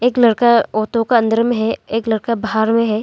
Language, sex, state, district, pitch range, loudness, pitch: Hindi, female, Arunachal Pradesh, Longding, 220-235 Hz, -16 LUFS, 230 Hz